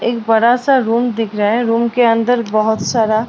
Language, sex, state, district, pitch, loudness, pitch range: Hindi, female, Bihar, Gopalganj, 230 Hz, -14 LUFS, 220-240 Hz